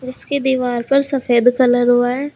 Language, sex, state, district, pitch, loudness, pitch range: Hindi, female, Uttar Pradesh, Saharanpur, 255 Hz, -15 LUFS, 245-275 Hz